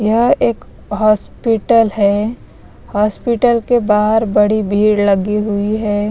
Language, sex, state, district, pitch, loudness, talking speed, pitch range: Hindi, female, Bihar, West Champaran, 215 Hz, -14 LUFS, 120 wpm, 210-225 Hz